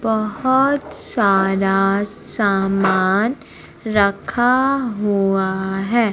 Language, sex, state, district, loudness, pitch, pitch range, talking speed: Hindi, female, Madhya Pradesh, Umaria, -18 LUFS, 205 Hz, 195-240 Hz, 60 wpm